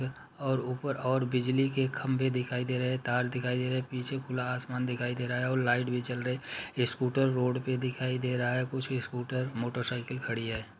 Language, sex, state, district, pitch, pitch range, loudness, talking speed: Hindi, male, Uttar Pradesh, Muzaffarnagar, 125 Hz, 125-130 Hz, -32 LUFS, 230 wpm